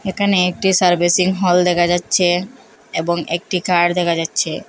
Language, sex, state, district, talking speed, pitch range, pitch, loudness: Bengali, female, Assam, Hailakandi, 140 wpm, 175-190 Hz, 180 Hz, -16 LUFS